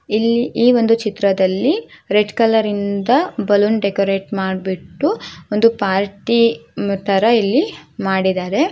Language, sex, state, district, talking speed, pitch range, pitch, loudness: Kannada, female, Karnataka, Shimoga, 95 wpm, 195-230 Hz, 210 Hz, -17 LUFS